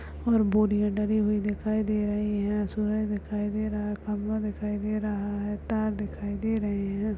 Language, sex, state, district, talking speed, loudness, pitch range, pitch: Hindi, male, Uttarakhand, Tehri Garhwal, 190 wpm, -28 LUFS, 205-215 Hz, 210 Hz